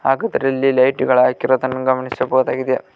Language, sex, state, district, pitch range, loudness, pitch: Kannada, male, Karnataka, Koppal, 130-135 Hz, -17 LUFS, 130 Hz